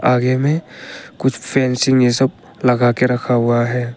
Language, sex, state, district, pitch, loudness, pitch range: Hindi, male, Arunachal Pradesh, Longding, 125 Hz, -16 LUFS, 120-130 Hz